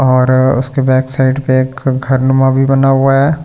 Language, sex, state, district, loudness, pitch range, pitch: Hindi, male, Delhi, New Delhi, -11 LUFS, 130-135 Hz, 130 Hz